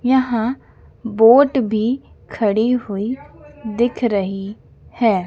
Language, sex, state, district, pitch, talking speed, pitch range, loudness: Hindi, female, Madhya Pradesh, Dhar, 230 Hz, 90 wpm, 215-250 Hz, -18 LUFS